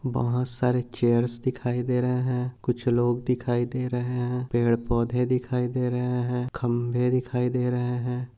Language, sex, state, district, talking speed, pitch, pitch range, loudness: Hindi, male, Maharashtra, Nagpur, 170 wpm, 125 Hz, 120-125 Hz, -26 LUFS